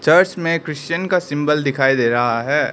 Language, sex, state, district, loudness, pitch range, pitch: Hindi, male, Arunachal Pradesh, Lower Dibang Valley, -18 LUFS, 135-165 Hz, 150 Hz